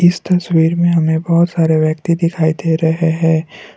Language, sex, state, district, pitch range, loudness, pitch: Hindi, male, Assam, Kamrup Metropolitan, 160-175 Hz, -14 LUFS, 165 Hz